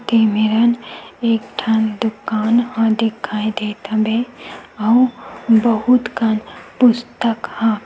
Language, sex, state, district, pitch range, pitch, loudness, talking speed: Chhattisgarhi, female, Chhattisgarh, Sukma, 215-235 Hz, 225 Hz, -17 LUFS, 105 wpm